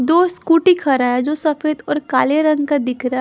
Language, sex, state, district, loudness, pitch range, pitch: Hindi, female, Haryana, Charkhi Dadri, -16 LUFS, 260-310 Hz, 295 Hz